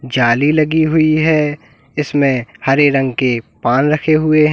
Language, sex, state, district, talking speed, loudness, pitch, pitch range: Hindi, male, Uttar Pradesh, Lalitpur, 160 wpm, -14 LUFS, 145 Hz, 130-155 Hz